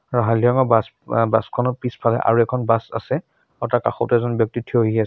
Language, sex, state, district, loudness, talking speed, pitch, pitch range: Assamese, male, Assam, Sonitpur, -20 LUFS, 200 wpm, 115 Hz, 115-120 Hz